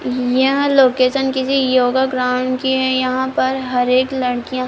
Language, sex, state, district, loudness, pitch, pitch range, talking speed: Hindi, female, Bihar, Supaul, -16 LUFS, 260 Hz, 255-265 Hz, 155 wpm